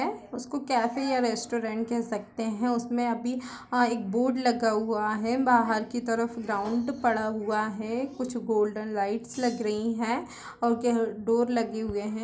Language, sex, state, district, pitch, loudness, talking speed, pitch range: Hindi, female, Chhattisgarh, Raigarh, 230 Hz, -28 LUFS, 160 wpm, 220-240 Hz